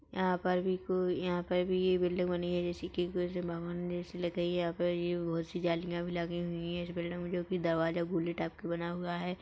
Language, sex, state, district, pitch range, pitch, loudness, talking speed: Hindi, female, Chhattisgarh, Rajnandgaon, 170-180 Hz, 175 Hz, -34 LUFS, 240 wpm